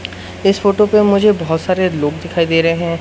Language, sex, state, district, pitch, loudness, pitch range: Hindi, male, Madhya Pradesh, Katni, 170 Hz, -14 LUFS, 160-200 Hz